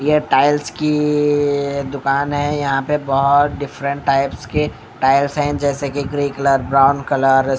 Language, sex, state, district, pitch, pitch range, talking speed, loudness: Hindi, male, Bihar, Katihar, 140 Hz, 135-145 Hz, 160 wpm, -17 LUFS